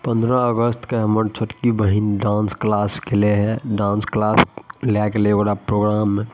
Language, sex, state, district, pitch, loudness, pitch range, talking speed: Maithili, male, Bihar, Madhepura, 105 Hz, -19 LUFS, 105-115 Hz, 170 wpm